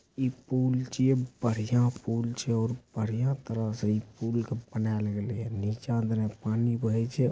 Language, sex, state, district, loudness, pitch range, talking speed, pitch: Angika, male, Bihar, Supaul, -30 LUFS, 110-125 Hz, 75 wpm, 115 Hz